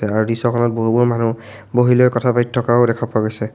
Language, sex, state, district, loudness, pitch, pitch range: Assamese, male, Assam, Sonitpur, -16 LUFS, 120 Hz, 110-120 Hz